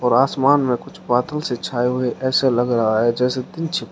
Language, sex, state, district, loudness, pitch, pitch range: Hindi, male, Uttar Pradesh, Shamli, -19 LUFS, 125 Hz, 120-135 Hz